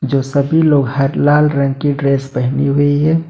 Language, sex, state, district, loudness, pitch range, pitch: Hindi, male, Jharkhand, Ranchi, -14 LUFS, 135-145 Hz, 140 Hz